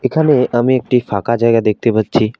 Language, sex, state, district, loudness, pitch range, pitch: Bengali, male, West Bengal, Alipurduar, -14 LUFS, 110-125 Hz, 115 Hz